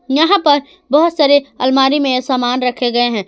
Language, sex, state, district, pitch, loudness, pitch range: Hindi, female, Jharkhand, Ranchi, 270 Hz, -13 LUFS, 250-290 Hz